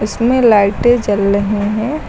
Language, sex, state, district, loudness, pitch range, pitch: Hindi, female, Uttar Pradesh, Lucknow, -13 LUFS, 205-240 Hz, 210 Hz